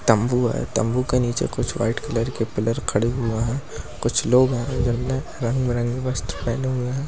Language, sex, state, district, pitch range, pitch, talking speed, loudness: Hindi, male, Uttar Pradesh, Muzaffarnagar, 115-130 Hz, 120 Hz, 195 wpm, -23 LUFS